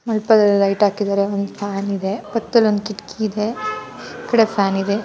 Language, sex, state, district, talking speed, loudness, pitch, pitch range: Kannada, female, Karnataka, Shimoga, 155 wpm, -18 LUFS, 210 Hz, 200-220 Hz